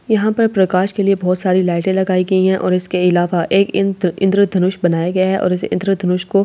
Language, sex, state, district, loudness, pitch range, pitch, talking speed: Hindi, female, Delhi, New Delhi, -15 LUFS, 180-195 Hz, 185 Hz, 235 wpm